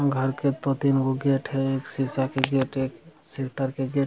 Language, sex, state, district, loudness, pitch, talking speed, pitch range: Hindi, male, Bihar, Jamui, -26 LUFS, 135 Hz, 205 wpm, 135-140 Hz